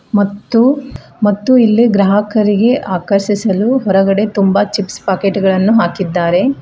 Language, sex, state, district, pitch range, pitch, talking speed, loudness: Kannada, female, Karnataka, Bidar, 195-225 Hz, 205 Hz, 100 wpm, -13 LUFS